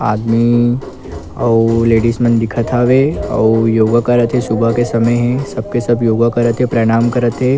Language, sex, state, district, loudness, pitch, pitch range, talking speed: Chhattisgarhi, male, Chhattisgarh, Kabirdham, -13 LUFS, 120 Hz, 115-120 Hz, 180 wpm